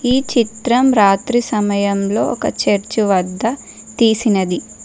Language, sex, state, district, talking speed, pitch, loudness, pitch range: Telugu, female, Telangana, Mahabubabad, 100 wpm, 215 Hz, -16 LUFS, 200-240 Hz